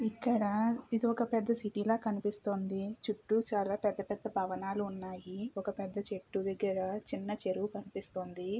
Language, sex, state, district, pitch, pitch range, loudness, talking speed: Telugu, female, Andhra Pradesh, Chittoor, 205 Hz, 195-220 Hz, -36 LUFS, 145 wpm